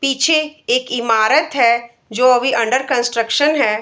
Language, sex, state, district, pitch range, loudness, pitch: Hindi, female, Bihar, Araria, 235-300 Hz, -15 LUFS, 255 Hz